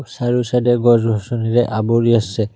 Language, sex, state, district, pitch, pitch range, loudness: Assamese, male, Assam, Kamrup Metropolitan, 115 Hz, 115-120 Hz, -16 LUFS